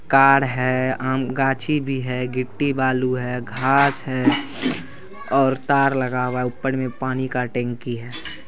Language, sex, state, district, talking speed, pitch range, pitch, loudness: Hindi, male, Bihar, Saharsa, 165 wpm, 125-135 Hz, 130 Hz, -21 LUFS